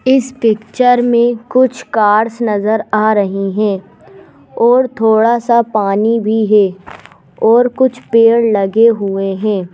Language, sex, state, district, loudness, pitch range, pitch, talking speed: Hindi, female, Madhya Pradesh, Bhopal, -12 LUFS, 210-235 Hz, 220 Hz, 125 wpm